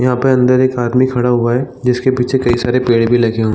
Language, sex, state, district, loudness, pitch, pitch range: Hindi, male, Chhattisgarh, Bilaspur, -13 LUFS, 125 Hz, 120-130 Hz